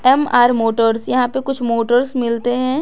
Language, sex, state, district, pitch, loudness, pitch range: Hindi, female, Jharkhand, Garhwa, 245 Hz, -16 LUFS, 230-260 Hz